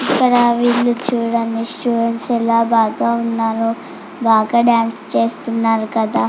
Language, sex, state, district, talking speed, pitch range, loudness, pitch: Telugu, female, Andhra Pradesh, Chittoor, 105 wpm, 225-240 Hz, -16 LUFS, 230 Hz